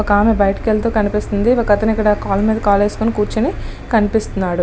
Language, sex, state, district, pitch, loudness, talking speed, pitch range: Telugu, female, Andhra Pradesh, Srikakulam, 210 Hz, -16 LUFS, 170 wpm, 205-220 Hz